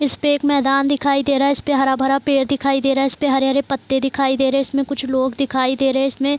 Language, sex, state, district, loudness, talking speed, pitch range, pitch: Hindi, female, Bihar, Kishanganj, -18 LUFS, 245 wpm, 270-280 Hz, 275 Hz